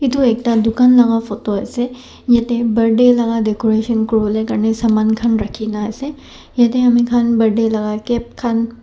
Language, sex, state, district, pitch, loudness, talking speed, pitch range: Nagamese, male, Nagaland, Dimapur, 230 Hz, -15 LUFS, 150 wpm, 220-240 Hz